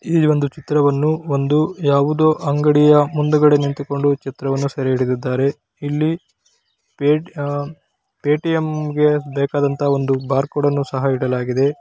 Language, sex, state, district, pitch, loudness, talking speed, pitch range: Kannada, male, Karnataka, Chamarajanagar, 145 Hz, -18 LUFS, 100 wpm, 140-150 Hz